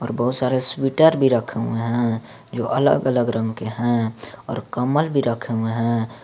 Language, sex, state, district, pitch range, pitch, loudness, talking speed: Hindi, male, Jharkhand, Garhwa, 115-130 Hz, 120 Hz, -21 LUFS, 190 wpm